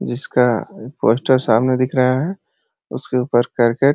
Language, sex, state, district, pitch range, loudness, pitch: Hindi, male, Uttar Pradesh, Ghazipur, 120-130 Hz, -17 LUFS, 125 Hz